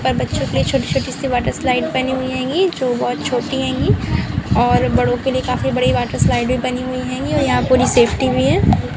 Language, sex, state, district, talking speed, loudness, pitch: Hindi, female, Uttar Pradesh, Muzaffarnagar, 235 wpm, -17 LUFS, 255 Hz